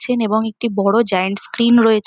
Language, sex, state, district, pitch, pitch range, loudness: Bengali, female, West Bengal, North 24 Parganas, 220 Hz, 200-235 Hz, -16 LUFS